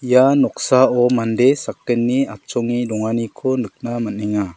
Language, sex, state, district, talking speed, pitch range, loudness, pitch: Garo, male, Meghalaya, South Garo Hills, 105 wpm, 110-130 Hz, -18 LUFS, 120 Hz